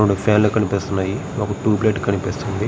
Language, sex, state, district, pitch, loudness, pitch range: Telugu, male, Andhra Pradesh, Srikakulam, 105 Hz, -19 LUFS, 100-105 Hz